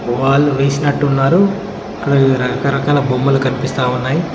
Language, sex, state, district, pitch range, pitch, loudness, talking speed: Telugu, male, Telangana, Mahabubabad, 130-145 Hz, 140 Hz, -15 LUFS, 110 wpm